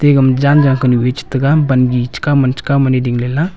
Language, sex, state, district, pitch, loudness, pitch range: Wancho, male, Arunachal Pradesh, Longding, 135 Hz, -13 LUFS, 125-145 Hz